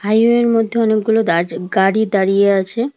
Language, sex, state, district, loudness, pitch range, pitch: Bengali, female, West Bengal, Cooch Behar, -15 LUFS, 195-230 Hz, 215 Hz